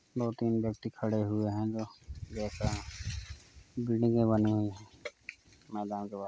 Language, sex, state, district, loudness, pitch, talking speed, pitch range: Hindi, male, Uttar Pradesh, Varanasi, -33 LUFS, 105 Hz, 135 wpm, 100-110 Hz